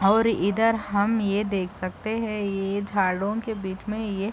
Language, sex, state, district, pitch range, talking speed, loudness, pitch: Hindi, female, Bihar, Gopalganj, 195-220 Hz, 195 wpm, -25 LUFS, 205 Hz